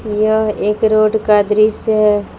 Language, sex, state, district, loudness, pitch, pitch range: Hindi, female, Jharkhand, Palamu, -14 LUFS, 215 Hz, 210-215 Hz